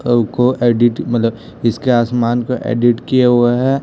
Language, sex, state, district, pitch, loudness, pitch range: Hindi, male, Chhattisgarh, Raipur, 120 Hz, -15 LUFS, 120-125 Hz